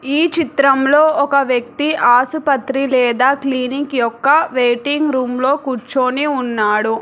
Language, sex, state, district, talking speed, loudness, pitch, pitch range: Telugu, female, Telangana, Hyderabad, 110 wpm, -15 LUFS, 265 Hz, 250-285 Hz